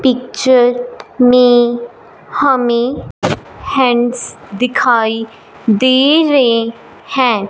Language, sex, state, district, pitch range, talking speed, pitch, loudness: Hindi, male, Punjab, Fazilka, 235-260 Hz, 65 wpm, 245 Hz, -13 LUFS